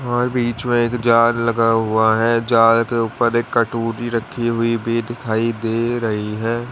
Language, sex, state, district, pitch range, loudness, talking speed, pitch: Hindi, male, Uttar Pradesh, Lalitpur, 115-120 Hz, -18 LUFS, 180 wpm, 115 Hz